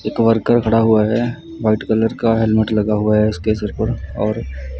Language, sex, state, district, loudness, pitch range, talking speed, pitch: Hindi, male, Punjab, Kapurthala, -17 LUFS, 105-115 Hz, 210 wpm, 110 Hz